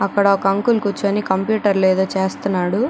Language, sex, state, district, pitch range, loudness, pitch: Telugu, female, Andhra Pradesh, Chittoor, 190-205 Hz, -18 LUFS, 200 Hz